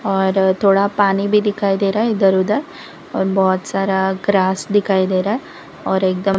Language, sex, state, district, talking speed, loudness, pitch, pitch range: Hindi, female, Gujarat, Valsad, 190 wpm, -17 LUFS, 195 Hz, 190-205 Hz